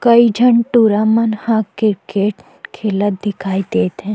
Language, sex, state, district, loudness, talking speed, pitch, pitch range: Chhattisgarhi, female, Chhattisgarh, Jashpur, -15 LUFS, 145 wpm, 210 Hz, 200-225 Hz